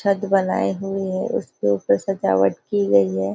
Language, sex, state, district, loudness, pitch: Hindi, female, Maharashtra, Nagpur, -20 LUFS, 100 Hz